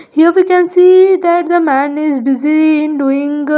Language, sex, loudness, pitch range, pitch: English, female, -10 LUFS, 290-345 Hz, 305 Hz